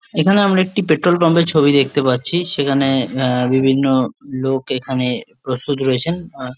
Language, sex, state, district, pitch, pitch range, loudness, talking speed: Bengali, male, West Bengal, Jalpaiguri, 135 Hz, 130-170 Hz, -16 LUFS, 145 wpm